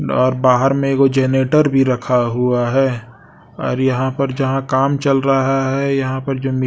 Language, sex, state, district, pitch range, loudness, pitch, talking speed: Hindi, male, Odisha, Sambalpur, 130-135 Hz, -16 LUFS, 135 Hz, 180 wpm